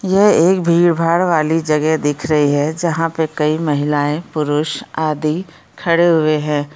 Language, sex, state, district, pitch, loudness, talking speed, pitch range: Hindi, female, Bihar, Darbhanga, 155 Hz, -16 LUFS, 150 wpm, 150-170 Hz